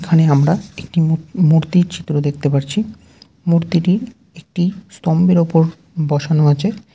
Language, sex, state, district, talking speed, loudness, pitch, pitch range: Bengali, male, West Bengal, Jalpaiguri, 120 wpm, -16 LUFS, 165 Hz, 150-180 Hz